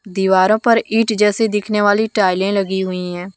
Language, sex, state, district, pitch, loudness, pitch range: Hindi, female, Jharkhand, Deoghar, 205 Hz, -16 LUFS, 190-215 Hz